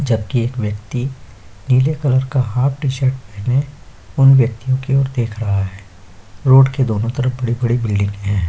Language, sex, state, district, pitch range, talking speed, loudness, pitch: Hindi, male, Chhattisgarh, Korba, 105-130 Hz, 170 wpm, -17 LUFS, 125 Hz